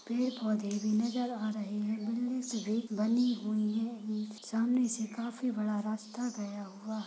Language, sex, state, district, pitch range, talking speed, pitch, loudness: Hindi, female, Uttar Pradesh, Budaun, 215-235 Hz, 160 wpm, 220 Hz, -34 LUFS